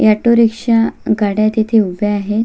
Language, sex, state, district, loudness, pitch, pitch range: Marathi, female, Maharashtra, Sindhudurg, -14 LUFS, 220 Hz, 210-225 Hz